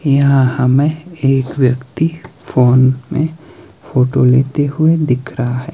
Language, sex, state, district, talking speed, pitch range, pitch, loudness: Hindi, male, Himachal Pradesh, Shimla, 125 wpm, 130-155 Hz, 135 Hz, -14 LUFS